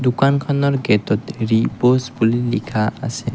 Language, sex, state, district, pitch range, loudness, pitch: Assamese, male, Assam, Kamrup Metropolitan, 110-135 Hz, -18 LUFS, 120 Hz